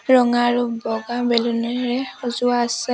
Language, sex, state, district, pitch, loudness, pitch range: Assamese, female, Assam, Sonitpur, 240 Hz, -20 LUFS, 235-245 Hz